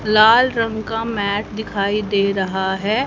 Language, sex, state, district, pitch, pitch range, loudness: Hindi, female, Haryana, Rohtak, 215 Hz, 200-225 Hz, -18 LUFS